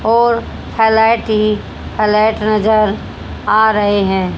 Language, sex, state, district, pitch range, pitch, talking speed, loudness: Hindi, female, Haryana, Jhajjar, 210-220 Hz, 215 Hz, 110 wpm, -13 LUFS